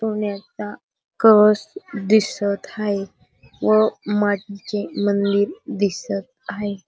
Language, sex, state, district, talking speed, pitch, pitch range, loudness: Marathi, female, Maharashtra, Dhule, 80 wpm, 205 Hz, 200-215 Hz, -20 LUFS